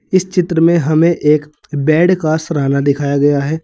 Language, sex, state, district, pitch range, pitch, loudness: Hindi, male, Uttar Pradesh, Saharanpur, 145-170 Hz, 155 Hz, -13 LUFS